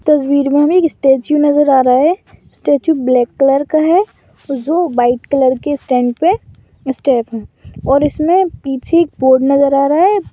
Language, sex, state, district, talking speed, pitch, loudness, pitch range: Bhojpuri, female, Uttar Pradesh, Gorakhpur, 180 wpm, 280 Hz, -13 LUFS, 265-310 Hz